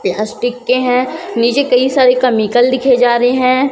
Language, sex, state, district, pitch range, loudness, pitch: Hindi, female, Chhattisgarh, Raipur, 240-255 Hz, -13 LUFS, 250 Hz